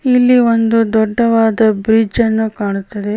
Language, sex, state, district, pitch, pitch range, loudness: Kannada, female, Karnataka, Chamarajanagar, 220 Hz, 215-230 Hz, -13 LUFS